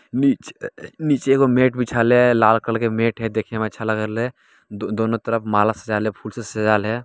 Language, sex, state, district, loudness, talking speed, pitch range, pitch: Hindi, male, Bihar, Jamui, -20 LUFS, 215 wpm, 110-125 Hz, 115 Hz